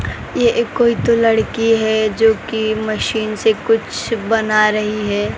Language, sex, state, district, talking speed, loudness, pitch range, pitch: Hindi, female, Maharashtra, Mumbai Suburban, 155 wpm, -16 LUFS, 215-225 Hz, 220 Hz